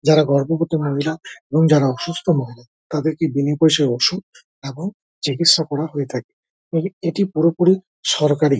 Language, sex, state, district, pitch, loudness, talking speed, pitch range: Bengali, male, West Bengal, Dakshin Dinajpur, 155 Hz, -19 LUFS, 125 wpm, 140-170 Hz